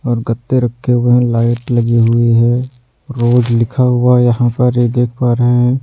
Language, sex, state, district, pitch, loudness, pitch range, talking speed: Hindi, male, Delhi, New Delhi, 120 Hz, -13 LUFS, 120-125 Hz, 205 wpm